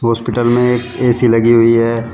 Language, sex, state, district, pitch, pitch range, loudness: Hindi, male, Uttar Pradesh, Shamli, 120 Hz, 115-120 Hz, -12 LUFS